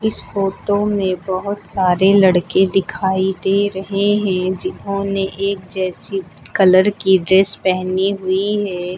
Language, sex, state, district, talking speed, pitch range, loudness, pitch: Hindi, female, Uttar Pradesh, Lucknow, 125 wpm, 185-200 Hz, -17 LUFS, 190 Hz